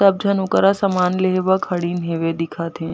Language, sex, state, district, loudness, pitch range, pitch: Chhattisgarhi, female, Chhattisgarh, Jashpur, -19 LUFS, 165-195 Hz, 180 Hz